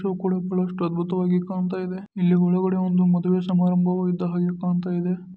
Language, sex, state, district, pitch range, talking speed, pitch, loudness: Kannada, male, Karnataka, Dharwad, 180-185 Hz, 125 wpm, 180 Hz, -23 LUFS